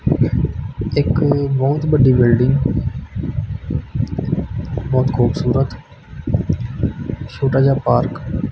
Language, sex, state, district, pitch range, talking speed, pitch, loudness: Punjabi, male, Punjab, Kapurthala, 120-140 Hz, 70 wpm, 130 Hz, -18 LUFS